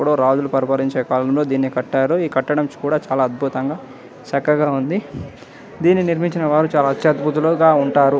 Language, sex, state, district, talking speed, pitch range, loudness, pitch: Telugu, male, Andhra Pradesh, Anantapur, 145 wpm, 135-155 Hz, -18 LUFS, 140 Hz